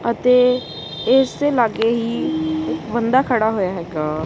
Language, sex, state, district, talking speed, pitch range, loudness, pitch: Punjabi, female, Punjab, Kapurthala, 140 wpm, 170-250 Hz, -18 LUFS, 230 Hz